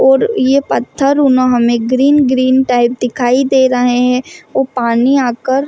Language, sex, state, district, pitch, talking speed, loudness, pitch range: Hindi, female, Chhattisgarh, Rajnandgaon, 260 Hz, 160 wpm, -12 LUFS, 245-270 Hz